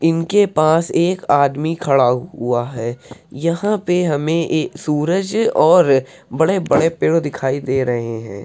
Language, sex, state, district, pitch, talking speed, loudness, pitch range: Hindi, male, Uttar Pradesh, Hamirpur, 155 Hz, 135 wpm, -17 LUFS, 135-170 Hz